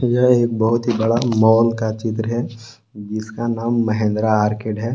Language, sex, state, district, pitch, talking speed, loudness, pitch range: Hindi, male, Jharkhand, Palamu, 115 Hz, 170 wpm, -18 LUFS, 110-120 Hz